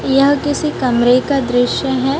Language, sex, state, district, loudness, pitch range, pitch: Hindi, female, Chhattisgarh, Raipur, -15 LUFS, 250-285 Hz, 270 Hz